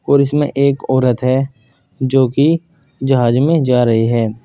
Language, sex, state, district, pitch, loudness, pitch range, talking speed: Hindi, male, Uttar Pradesh, Saharanpur, 130 Hz, -14 LUFS, 125-140 Hz, 160 wpm